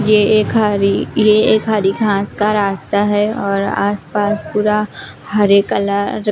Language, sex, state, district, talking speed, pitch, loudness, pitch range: Hindi, female, Himachal Pradesh, Shimla, 150 wpm, 205 Hz, -15 LUFS, 200-215 Hz